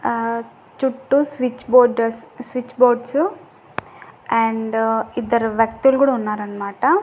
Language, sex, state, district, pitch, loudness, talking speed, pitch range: Telugu, female, Andhra Pradesh, Annamaya, 240 Hz, -19 LUFS, 95 wpm, 225-265 Hz